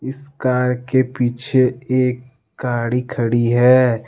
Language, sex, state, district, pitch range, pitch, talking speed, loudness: Hindi, male, Jharkhand, Deoghar, 120-130 Hz, 125 Hz, 120 wpm, -18 LUFS